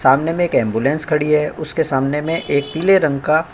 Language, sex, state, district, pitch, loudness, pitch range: Hindi, male, Uttar Pradesh, Jyotiba Phule Nagar, 150 Hz, -17 LUFS, 140-160 Hz